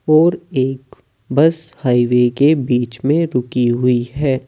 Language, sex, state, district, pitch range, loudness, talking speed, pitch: Hindi, male, Uttar Pradesh, Saharanpur, 125-155 Hz, -16 LUFS, 135 wpm, 130 Hz